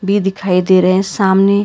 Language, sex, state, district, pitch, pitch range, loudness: Hindi, female, Karnataka, Bangalore, 195 Hz, 185-200 Hz, -13 LUFS